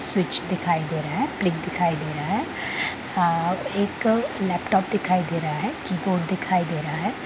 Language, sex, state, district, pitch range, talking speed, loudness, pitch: Hindi, female, Bihar, Sitamarhi, 165-195 Hz, 175 wpm, -24 LUFS, 180 Hz